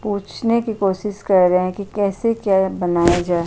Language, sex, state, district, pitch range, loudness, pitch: Hindi, female, Uttar Pradesh, Jyotiba Phule Nagar, 180-210 Hz, -18 LUFS, 195 Hz